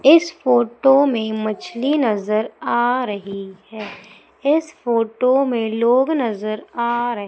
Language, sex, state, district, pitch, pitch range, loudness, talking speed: Hindi, female, Madhya Pradesh, Umaria, 235 Hz, 215-260 Hz, -19 LUFS, 125 wpm